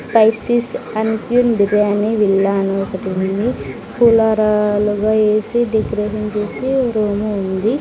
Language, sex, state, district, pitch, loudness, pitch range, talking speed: Telugu, female, Andhra Pradesh, Sri Satya Sai, 215 Hz, -16 LUFS, 205-225 Hz, 125 wpm